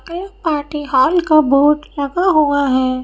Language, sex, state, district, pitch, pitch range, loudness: Hindi, female, Madhya Pradesh, Bhopal, 300 Hz, 280-335 Hz, -15 LUFS